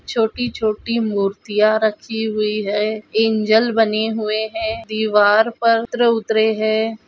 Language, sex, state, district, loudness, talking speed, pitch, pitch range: Hindi, female, Goa, North and South Goa, -18 LUFS, 120 wpm, 220 Hz, 215-225 Hz